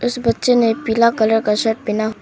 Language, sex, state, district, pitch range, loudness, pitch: Hindi, female, Arunachal Pradesh, Papum Pare, 220-235 Hz, -16 LUFS, 225 Hz